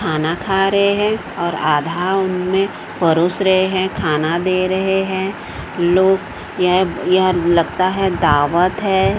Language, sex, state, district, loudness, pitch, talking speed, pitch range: Hindi, female, Odisha, Sambalpur, -16 LUFS, 185 Hz, 145 wpm, 170-190 Hz